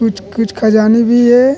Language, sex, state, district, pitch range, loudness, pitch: Chhattisgarhi, male, Chhattisgarh, Rajnandgaon, 220-240 Hz, -11 LUFS, 225 Hz